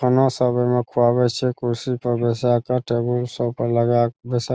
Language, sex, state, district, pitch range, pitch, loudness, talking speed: Maithili, male, Bihar, Saharsa, 120-125 Hz, 120 Hz, -20 LUFS, 210 wpm